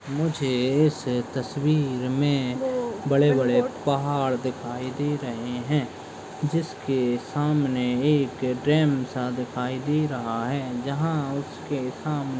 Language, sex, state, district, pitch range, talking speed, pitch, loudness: Hindi, male, Uttarakhand, Tehri Garhwal, 125-150 Hz, 105 wpm, 140 Hz, -25 LUFS